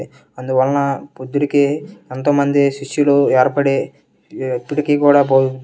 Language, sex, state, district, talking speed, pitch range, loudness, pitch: Telugu, male, Andhra Pradesh, Srikakulam, 85 wpm, 130-145 Hz, -16 LUFS, 140 Hz